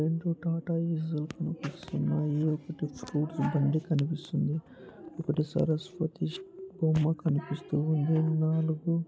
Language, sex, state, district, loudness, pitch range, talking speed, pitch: Telugu, male, Andhra Pradesh, Anantapur, -31 LUFS, 150-165 Hz, 100 wpm, 160 Hz